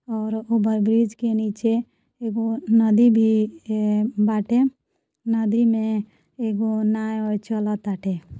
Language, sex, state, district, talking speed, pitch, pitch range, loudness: Bhojpuri, female, Uttar Pradesh, Deoria, 105 wpm, 220 Hz, 215-230 Hz, -22 LUFS